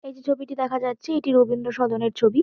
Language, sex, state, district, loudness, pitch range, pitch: Bengali, female, West Bengal, Kolkata, -23 LUFS, 245-275 Hz, 255 Hz